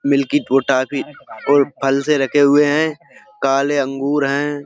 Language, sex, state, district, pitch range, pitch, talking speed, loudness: Hindi, male, Uttar Pradesh, Budaun, 135-145 Hz, 140 Hz, 140 wpm, -17 LUFS